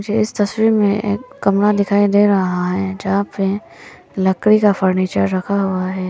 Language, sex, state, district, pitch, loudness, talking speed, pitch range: Hindi, female, Arunachal Pradesh, Papum Pare, 200 Hz, -16 LUFS, 185 wpm, 190-205 Hz